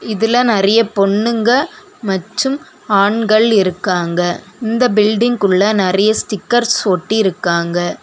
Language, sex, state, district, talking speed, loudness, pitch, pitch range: Tamil, female, Tamil Nadu, Kanyakumari, 90 wpm, -14 LUFS, 210 Hz, 190-230 Hz